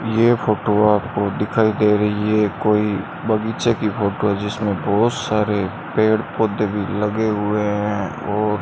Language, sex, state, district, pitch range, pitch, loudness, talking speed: Hindi, male, Rajasthan, Bikaner, 105-110 Hz, 105 Hz, -19 LUFS, 160 wpm